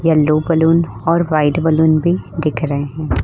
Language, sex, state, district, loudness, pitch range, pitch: Hindi, female, Uttar Pradesh, Budaun, -15 LUFS, 150-165 Hz, 155 Hz